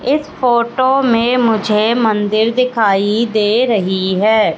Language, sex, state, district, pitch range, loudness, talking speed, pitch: Hindi, female, Madhya Pradesh, Katni, 215-245 Hz, -14 LUFS, 120 wpm, 225 Hz